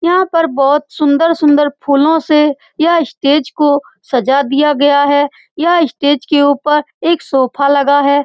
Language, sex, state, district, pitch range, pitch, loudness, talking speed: Hindi, female, Bihar, Saran, 280-315 Hz, 290 Hz, -12 LUFS, 150 wpm